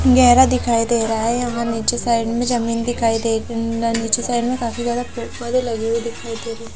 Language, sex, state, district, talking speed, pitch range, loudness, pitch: Hindi, female, Odisha, Nuapada, 220 wpm, 230-240 Hz, -19 LUFS, 235 Hz